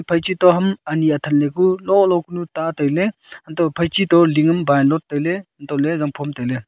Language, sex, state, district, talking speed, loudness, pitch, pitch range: Wancho, male, Arunachal Pradesh, Longding, 235 wpm, -18 LUFS, 165 Hz, 145-180 Hz